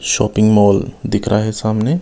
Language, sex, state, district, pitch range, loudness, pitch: Hindi, male, Himachal Pradesh, Shimla, 105-115 Hz, -15 LUFS, 110 Hz